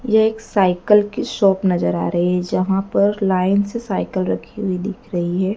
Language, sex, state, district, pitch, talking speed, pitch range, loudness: Hindi, female, Madhya Pradesh, Dhar, 195 Hz, 205 wpm, 180-210 Hz, -19 LUFS